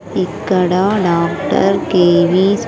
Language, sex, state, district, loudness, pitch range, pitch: Telugu, female, Andhra Pradesh, Sri Satya Sai, -14 LUFS, 175-195 Hz, 185 Hz